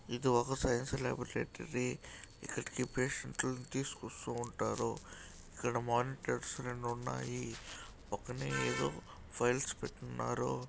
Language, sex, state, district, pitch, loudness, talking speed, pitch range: Telugu, male, Andhra Pradesh, Chittoor, 120 Hz, -38 LUFS, 100 wpm, 90-125 Hz